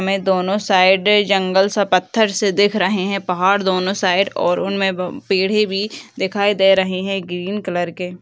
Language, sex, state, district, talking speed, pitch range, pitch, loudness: Hindi, female, Bihar, Begusarai, 180 wpm, 185-200 Hz, 195 Hz, -17 LUFS